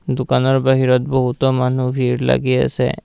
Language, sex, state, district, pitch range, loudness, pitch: Assamese, male, Assam, Kamrup Metropolitan, 125-130 Hz, -16 LUFS, 130 Hz